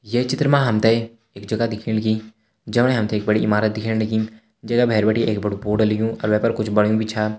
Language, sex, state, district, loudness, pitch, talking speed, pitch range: Hindi, male, Uttarakhand, Uttarkashi, -20 LUFS, 110 Hz, 225 wpm, 105-115 Hz